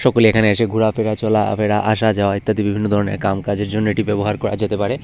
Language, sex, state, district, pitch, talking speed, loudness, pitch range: Bengali, male, Tripura, West Tripura, 105 Hz, 215 wpm, -18 LUFS, 105-110 Hz